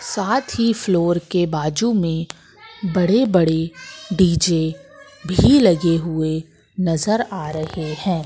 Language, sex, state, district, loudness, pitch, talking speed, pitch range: Hindi, female, Madhya Pradesh, Katni, -19 LUFS, 180 Hz, 115 wpm, 160-215 Hz